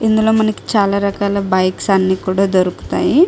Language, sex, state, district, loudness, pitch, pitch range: Telugu, female, Andhra Pradesh, Guntur, -15 LUFS, 200 Hz, 185-215 Hz